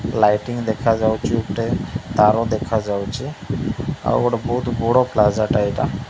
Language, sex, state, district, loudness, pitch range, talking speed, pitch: Odia, male, Odisha, Malkangiri, -20 LUFS, 105-120 Hz, 140 wpm, 110 Hz